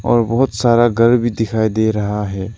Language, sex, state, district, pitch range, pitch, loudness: Hindi, male, Arunachal Pradesh, Lower Dibang Valley, 110-120 Hz, 115 Hz, -15 LUFS